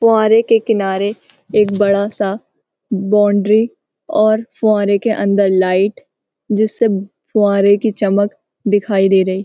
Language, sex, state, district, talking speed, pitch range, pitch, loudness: Hindi, female, Uttarakhand, Uttarkashi, 120 wpm, 200-220 Hz, 205 Hz, -15 LUFS